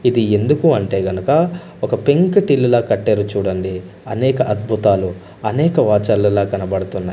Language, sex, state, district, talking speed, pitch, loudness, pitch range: Telugu, male, Andhra Pradesh, Manyam, 110 wpm, 105 Hz, -16 LUFS, 95-130 Hz